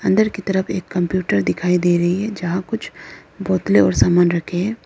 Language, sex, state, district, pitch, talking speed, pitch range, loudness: Hindi, female, Arunachal Pradesh, Lower Dibang Valley, 180 Hz, 200 wpm, 175-195 Hz, -18 LUFS